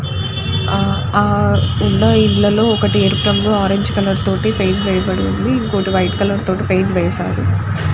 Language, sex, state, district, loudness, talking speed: Telugu, female, Andhra Pradesh, Guntur, -15 LUFS, 145 wpm